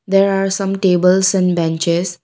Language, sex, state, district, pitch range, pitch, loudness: English, female, Assam, Kamrup Metropolitan, 175-195 Hz, 185 Hz, -15 LUFS